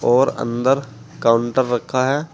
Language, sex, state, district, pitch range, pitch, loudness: Hindi, male, Uttar Pradesh, Saharanpur, 120-135 Hz, 130 Hz, -19 LUFS